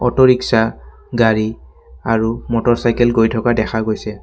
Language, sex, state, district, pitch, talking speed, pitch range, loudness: Assamese, male, Assam, Kamrup Metropolitan, 115 Hz, 125 wpm, 110-120 Hz, -16 LUFS